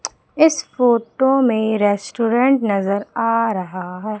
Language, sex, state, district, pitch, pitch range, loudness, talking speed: Hindi, female, Madhya Pradesh, Umaria, 230 Hz, 205-250 Hz, -18 LUFS, 115 wpm